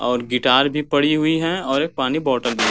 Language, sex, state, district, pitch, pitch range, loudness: Hindi, male, Uttar Pradesh, Varanasi, 135 Hz, 125-155 Hz, -19 LUFS